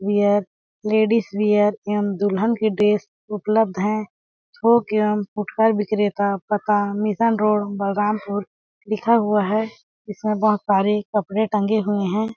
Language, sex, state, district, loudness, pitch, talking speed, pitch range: Hindi, female, Chhattisgarh, Balrampur, -20 LUFS, 210 Hz, 130 wpm, 205-215 Hz